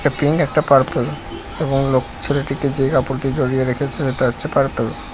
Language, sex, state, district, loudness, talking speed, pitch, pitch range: Bengali, male, West Bengal, Cooch Behar, -19 LUFS, 185 wpm, 135 Hz, 130-145 Hz